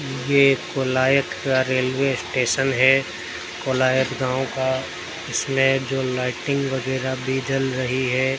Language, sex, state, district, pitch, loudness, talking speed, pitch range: Hindi, male, Rajasthan, Bikaner, 130 Hz, -21 LUFS, 120 wpm, 130-135 Hz